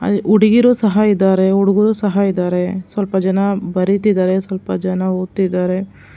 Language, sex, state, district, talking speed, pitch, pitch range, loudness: Kannada, female, Karnataka, Bangalore, 125 wpm, 195 Hz, 185-205 Hz, -15 LUFS